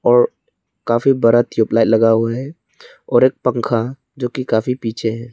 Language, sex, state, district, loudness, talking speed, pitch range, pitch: Hindi, male, Arunachal Pradesh, Lower Dibang Valley, -17 LUFS, 170 wpm, 115-125 Hz, 120 Hz